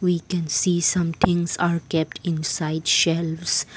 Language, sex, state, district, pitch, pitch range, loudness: English, female, Assam, Kamrup Metropolitan, 170 Hz, 160-175 Hz, -22 LUFS